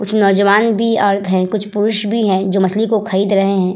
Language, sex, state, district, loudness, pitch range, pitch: Hindi, female, Bihar, Vaishali, -14 LUFS, 195-215 Hz, 200 Hz